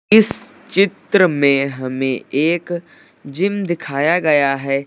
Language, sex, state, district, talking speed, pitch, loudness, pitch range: Hindi, male, Uttar Pradesh, Lucknow, 110 wpm, 150 Hz, -17 LUFS, 140-180 Hz